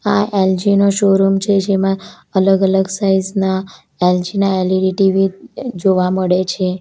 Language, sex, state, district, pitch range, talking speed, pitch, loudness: Gujarati, female, Gujarat, Valsad, 190-195 Hz, 140 wpm, 195 Hz, -15 LUFS